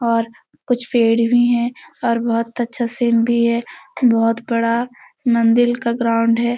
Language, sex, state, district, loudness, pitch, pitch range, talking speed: Hindi, female, Bihar, Supaul, -17 LUFS, 235 Hz, 230-240 Hz, 155 wpm